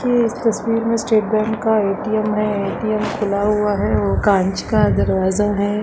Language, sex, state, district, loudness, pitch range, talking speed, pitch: Kumaoni, female, Uttarakhand, Uttarkashi, -18 LUFS, 200-220 Hz, 185 wpm, 210 Hz